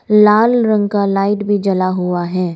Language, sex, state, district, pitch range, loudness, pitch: Hindi, female, Arunachal Pradesh, Lower Dibang Valley, 185-210 Hz, -14 LUFS, 200 Hz